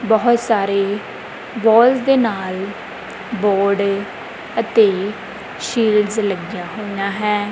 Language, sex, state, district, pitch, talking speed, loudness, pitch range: Punjabi, male, Punjab, Kapurthala, 210 Hz, 90 wpm, -18 LUFS, 200-225 Hz